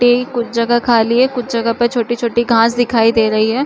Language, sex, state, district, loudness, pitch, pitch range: Chhattisgarhi, female, Chhattisgarh, Rajnandgaon, -14 LUFS, 235 Hz, 230-245 Hz